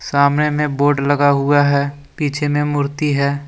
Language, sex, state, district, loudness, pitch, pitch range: Hindi, male, Jharkhand, Deoghar, -16 LUFS, 145 Hz, 140-145 Hz